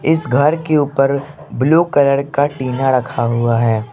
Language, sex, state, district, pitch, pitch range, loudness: Hindi, male, Arunachal Pradesh, Lower Dibang Valley, 140 Hz, 125-150 Hz, -15 LUFS